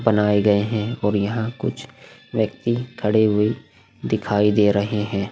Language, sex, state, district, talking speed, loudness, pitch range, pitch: Hindi, male, Goa, North and South Goa, 145 wpm, -21 LUFS, 105-110 Hz, 105 Hz